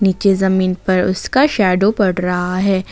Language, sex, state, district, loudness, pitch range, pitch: Hindi, female, Jharkhand, Ranchi, -15 LUFS, 185-200 Hz, 190 Hz